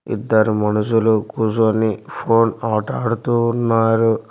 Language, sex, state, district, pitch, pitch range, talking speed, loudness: Telugu, male, Telangana, Mahabubabad, 110 Hz, 110-115 Hz, 85 wpm, -18 LUFS